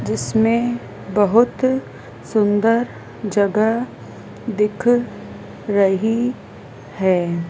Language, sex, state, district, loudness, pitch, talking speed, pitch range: Hindi, female, Madhya Pradesh, Dhar, -19 LUFS, 215 Hz, 55 wpm, 200-235 Hz